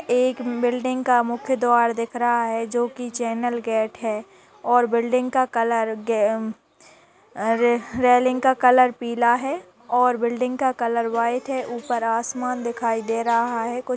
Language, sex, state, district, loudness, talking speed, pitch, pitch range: Hindi, female, Uttar Pradesh, Jalaun, -22 LUFS, 155 wpm, 240 Hz, 230-250 Hz